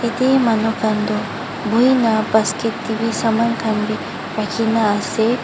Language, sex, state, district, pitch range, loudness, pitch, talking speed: Nagamese, female, Mizoram, Aizawl, 220-230 Hz, -18 LUFS, 225 Hz, 165 wpm